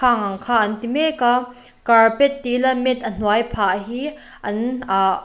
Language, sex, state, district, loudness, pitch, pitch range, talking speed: Mizo, female, Mizoram, Aizawl, -19 LUFS, 240 Hz, 215-255 Hz, 195 wpm